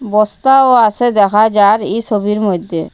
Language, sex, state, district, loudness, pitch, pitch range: Bengali, female, Assam, Hailakandi, -12 LUFS, 210 Hz, 205-230 Hz